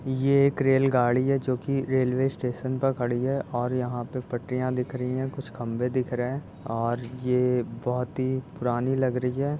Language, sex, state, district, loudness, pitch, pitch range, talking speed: Hindi, male, Uttar Pradesh, Jyotiba Phule Nagar, -27 LUFS, 125 Hz, 125-135 Hz, 200 wpm